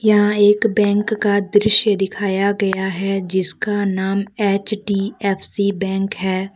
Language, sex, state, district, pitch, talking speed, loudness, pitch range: Hindi, female, Jharkhand, Deoghar, 200 Hz, 120 wpm, -18 LUFS, 195-205 Hz